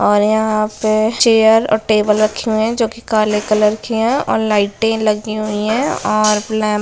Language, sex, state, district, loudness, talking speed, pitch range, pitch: Hindi, female, Bihar, Gopalganj, -15 LUFS, 210 wpm, 210-220 Hz, 215 Hz